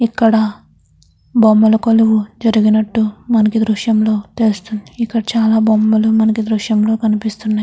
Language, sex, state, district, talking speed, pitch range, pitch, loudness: Telugu, female, Andhra Pradesh, Krishna, 125 wpm, 215-225 Hz, 220 Hz, -14 LUFS